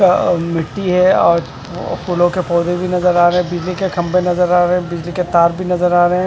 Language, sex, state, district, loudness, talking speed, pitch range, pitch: Hindi, male, Punjab, Fazilka, -15 LUFS, 260 wpm, 175-180 Hz, 180 Hz